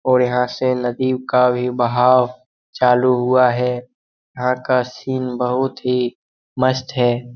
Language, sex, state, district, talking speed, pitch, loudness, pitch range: Hindi, male, Bihar, Lakhisarai, 145 wpm, 125 Hz, -18 LUFS, 125-130 Hz